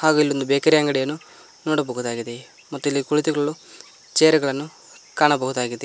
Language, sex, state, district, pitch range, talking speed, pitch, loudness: Kannada, male, Karnataka, Koppal, 135-155 Hz, 105 wpm, 145 Hz, -21 LUFS